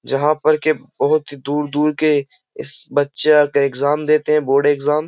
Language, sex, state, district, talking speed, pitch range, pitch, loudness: Hindi, male, Uttar Pradesh, Jyotiba Phule Nagar, 175 wpm, 140-150 Hz, 150 Hz, -16 LUFS